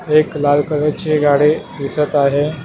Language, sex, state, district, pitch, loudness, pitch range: Marathi, male, Maharashtra, Mumbai Suburban, 150 Hz, -15 LUFS, 145-155 Hz